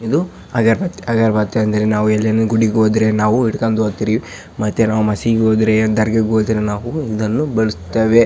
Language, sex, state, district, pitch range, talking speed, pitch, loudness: Kannada, male, Karnataka, Raichur, 110-115 Hz, 150 wpm, 110 Hz, -16 LUFS